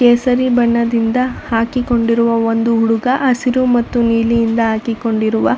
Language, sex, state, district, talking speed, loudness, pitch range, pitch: Kannada, female, Karnataka, Shimoga, 130 wpm, -15 LUFS, 225-245 Hz, 235 Hz